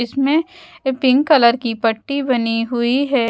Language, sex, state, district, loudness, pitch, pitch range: Hindi, female, Bihar, West Champaran, -17 LUFS, 260 Hz, 235-280 Hz